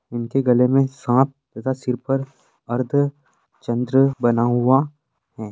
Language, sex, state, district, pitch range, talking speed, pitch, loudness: Hindi, male, Uttar Pradesh, Deoria, 120-135 Hz, 120 wpm, 130 Hz, -20 LUFS